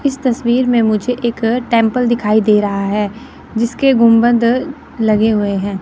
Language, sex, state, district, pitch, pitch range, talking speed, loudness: Hindi, female, Chandigarh, Chandigarh, 230 Hz, 215-245 Hz, 155 wpm, -14 LUFS